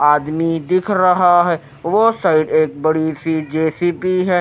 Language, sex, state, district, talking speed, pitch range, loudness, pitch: Hindi, male, Odisha, Nuapada, 135 wpm, 155-180 Hz, -16 LUFS, 165 Hz